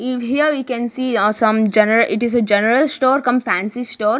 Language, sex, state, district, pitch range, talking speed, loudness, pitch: English, female, Maharashtra, Gondia, 220-255 Hz, 215 wpm, -16 LUFS, 240 Hz